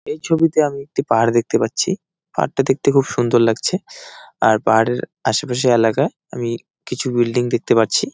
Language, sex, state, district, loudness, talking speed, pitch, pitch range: Bengali, male, West Bengal, Jalpaiguri, -18 LUFS, 160 wpm, 130 Hz, 120-165 Hz